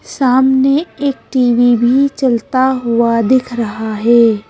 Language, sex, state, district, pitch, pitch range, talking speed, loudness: Hindi, female, Madhya Pradesh, Bhopal, 245 Hz, 235-265 Hz, 145 wpm, -13 LUFS